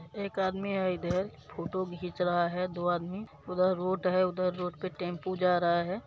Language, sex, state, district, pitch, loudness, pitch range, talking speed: Maithili, male, Bihar, Supaul, 180 Hz, -31 LUFS, 175-185 Hz, 200 wpm